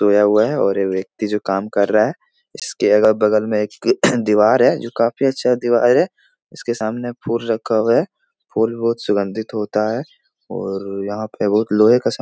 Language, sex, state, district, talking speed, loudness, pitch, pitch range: Hindi, male, Bihar, Darbhanga, 195 wpm, -18 LUFS, 110 Hz, 105-120 Hz